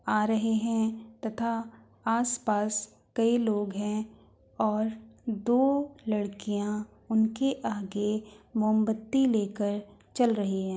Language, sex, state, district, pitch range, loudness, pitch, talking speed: Hindi, female, Uttar Pradesh, Hamirpur, 210-230 Hz, -29 LUFS, 220 Hz, 100 wpm